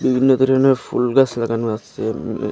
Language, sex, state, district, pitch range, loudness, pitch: Bengali, male, Assam, Hailakandi, 115-130 Hz, -18 LUFS, 130 Hz